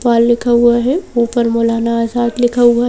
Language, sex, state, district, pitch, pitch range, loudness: Hindi, female, Madhya Pradesh, Bhopal, 240 Hz, 235-240 Hz, -13 LUFS